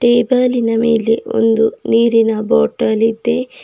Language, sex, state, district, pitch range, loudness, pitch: Kannada, female, Karnataka, Bidar, 225-240 Hz, -14 LUFS, 225 Hz